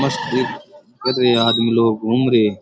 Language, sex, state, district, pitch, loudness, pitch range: Rajasthani, male, Rajasthan, Churu, 115 Hz, -17 LUFS, 115-130 Hz